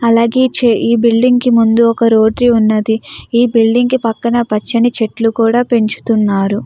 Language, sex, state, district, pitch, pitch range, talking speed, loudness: Telugu, female, Andhra Pradesh, Guntur, 230 Hz, 220-240 Hz, 135 wpm, -12 LUFS